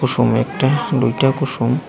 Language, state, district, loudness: Kokborok, Tripura, Dhalai, -17 LUFS